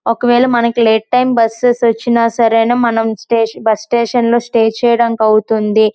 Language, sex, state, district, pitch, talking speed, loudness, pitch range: Telugu, female, Andhra Pradesh, Srikakulam, 230 Hz, 140 wpm, -12 LUFS, 225-240 Hz